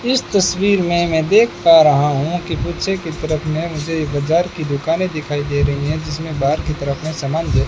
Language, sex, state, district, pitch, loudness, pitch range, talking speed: Hindi, male, Rajasthan, Bikaner, 160 Hz, -17 LUFS, 150-175 Hz, 220 wpm